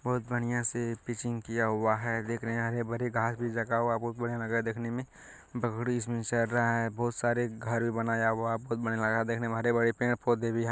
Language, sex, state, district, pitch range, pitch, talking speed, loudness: Hindi, male, Bihar, Kishanganj, 115-120 Hz, 115 Hz, 260 wpm, -31 LUFS